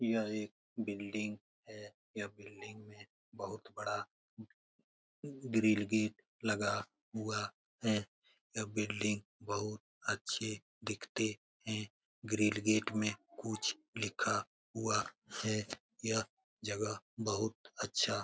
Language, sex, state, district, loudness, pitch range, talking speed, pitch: Hindi, male, Bihar, Lakhisarai, -38 LUFS, 105-110 Hz, 100 wpm, 110 Hz